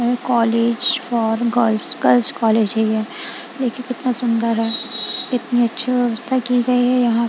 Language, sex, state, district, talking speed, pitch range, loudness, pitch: Hindi, female, Punjab, Kapurthala, 150 wpm, 230-250 Hz, -18 LUFS, 240 Hz